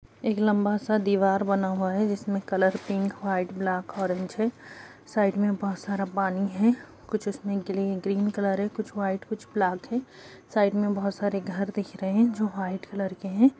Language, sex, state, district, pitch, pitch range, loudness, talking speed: Hindi, female, Uttar Pradesh, Budaun, 200 Hz, 195-210 Hz, -27 LUFS, 200 wpm